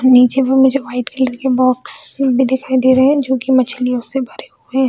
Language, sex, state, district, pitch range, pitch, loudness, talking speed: Hindi, female, Bihar, Jamui, 250-265 Hz, 260 Hz, -14 LUFS, 220 wpm